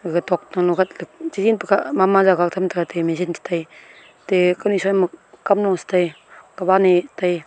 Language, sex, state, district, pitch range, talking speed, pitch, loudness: Wancho, female, Arunachal Pradesh, Longding, 175-195 Hz, 215 wpm, 180 Hz, -19 LUFS